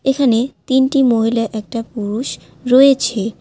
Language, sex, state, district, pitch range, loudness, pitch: Bengali, female, West Bengal, Alipurduar, 225-265 Hz, -15 LUFS, 240 Hz